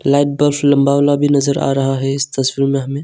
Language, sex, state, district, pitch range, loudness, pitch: Hindi, male, Arunachal Pradesh, Longding, 135-145 Hz, -15 LUFS, 140 Hz